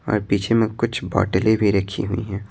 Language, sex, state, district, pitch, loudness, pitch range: Hindi, male, Bihar, Patna, 100 Hz, -21 LUFS, 95-110 Hz